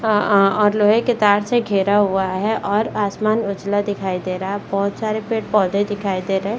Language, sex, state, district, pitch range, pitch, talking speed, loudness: Hindi, female, Bihar, Saran, 195-215 Hz, 205 Hz, 220 wpm, -19 LUFS